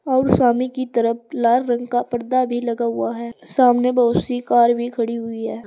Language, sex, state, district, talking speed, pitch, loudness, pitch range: Hindi, female, Uttar Pradesh, Saharanpur, 210 wpm, 240 Hz, -19 LUFS, 235-250 Hz